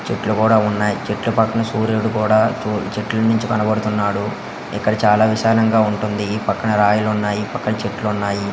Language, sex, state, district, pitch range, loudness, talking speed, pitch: Telugu, male, Andhra Pradesh, Guntur, 105-110 Hz, -18 LUFS, 150 wpm, 105 Hz